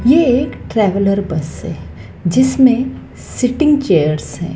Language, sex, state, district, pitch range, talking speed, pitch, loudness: Hindi, female, Madhya Pradesh, Dhar, 170-260 Hz, 120 wpm, 235 Hz, -15 LUFS